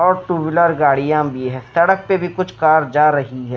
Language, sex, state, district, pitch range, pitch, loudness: Hindi, male, Himachal Pradesh, Shimla, 140-175 Hz, 155 Hz, -16 LUFS